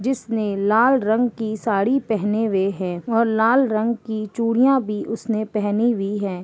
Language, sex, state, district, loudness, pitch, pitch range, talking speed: Hindi, female, Uttar Pradesh, Ghazipur, -20 LUFS, 220 Hz, 205-235 Hz, 160 wpm